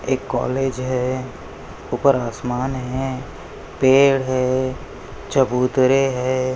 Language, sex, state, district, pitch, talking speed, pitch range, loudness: Hindi, male, Maharashtra, Pune, 130 Hz, 90 wpm, 125-135 Hz, -20 LUFS